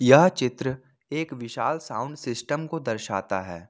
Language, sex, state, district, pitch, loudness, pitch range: Hindi, male, Jharkhand, Ranchi, 130 Hz, -26 LUFS, 115-145 Hz